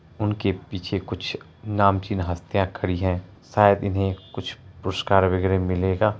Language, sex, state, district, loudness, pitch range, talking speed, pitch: Hindi, male, Bihar, Araria, -24 LUFS, 95-100 Hz, 125 wpm, 95 Hz